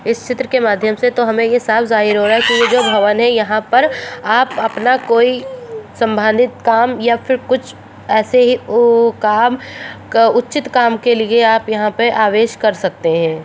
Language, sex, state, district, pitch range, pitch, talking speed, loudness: Hindi, female, Bihar, Madhepura, 220-245 Hz, 230 Hz, 195 wpm, -13 LUFS